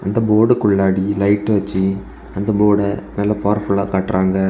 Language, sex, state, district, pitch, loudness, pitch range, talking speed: Tamil, male, Tamil Nadu, Kanyakumari, 100 Hz, -17 LUFS, 95-105 Hz, 105 wpm